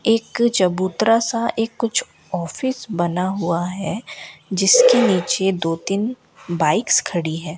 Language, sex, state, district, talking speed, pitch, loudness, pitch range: Hindi, female, Rajasthan, Bikaner, 125 wpm, 195 Hz, -19 LUFS, 175-230 Hz